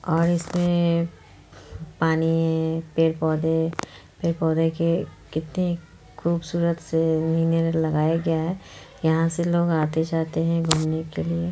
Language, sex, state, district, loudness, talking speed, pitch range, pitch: Hindi, female, Bihar, Muzaffarpur, -23 LUFS, 105 wpm, 160-170 Hz, 165 Hz